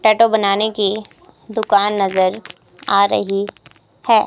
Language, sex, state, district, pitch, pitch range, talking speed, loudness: Hindi, female, Himachal Pradesh, Shimla, 205 Hz, 200-215 Hz, 110 wpm, -16 LUFS